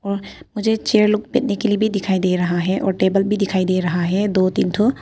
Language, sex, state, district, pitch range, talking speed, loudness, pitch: Hindi, female, Arunachal Pradesh, Papum Pare, 185-215 Hz, 250 wpm, -19 LUFS, 200 Hz